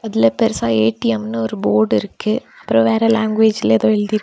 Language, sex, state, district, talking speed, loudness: Tamil, female, Tamil Nadu, Kanyakumari, 170 wpm, -16 LUFS